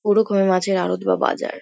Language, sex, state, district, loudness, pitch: Bengali, female, West Bengal, Kolkata, -19 LUFS, 185 Hz